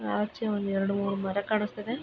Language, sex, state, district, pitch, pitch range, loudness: Kannada, male, Karnataka, Mysore, 200 Hz, 195-210 Hz, -30 LUFS